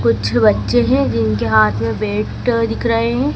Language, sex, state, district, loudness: Hindi, female, Madhya Pradesh, Dhar, -16 LUFS